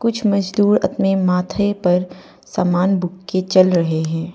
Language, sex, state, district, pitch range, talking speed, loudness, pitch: Hindi, female, Arunachal Pradesh, Papum Pare, 180-200 Hz, 150 wpm, -17 LUFS, 185 Hz